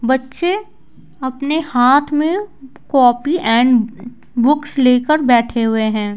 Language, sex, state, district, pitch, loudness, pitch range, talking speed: Hindi, female, Bihar, Patna, 260 Hz, -15 LUFS, 240-295 Hz, 105 wpm